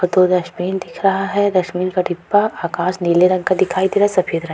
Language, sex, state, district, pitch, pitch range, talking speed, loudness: Hindi, female, Uttar Pradesh, Jalaun, 185 Hz, 175-190 Hz, 265 wpm, -17 LUFS